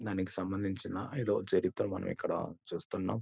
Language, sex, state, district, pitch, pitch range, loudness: Telugu, male, Andhra Pradesh, Guntur, 95 Hz, 95-100 Hz, -35 LUFS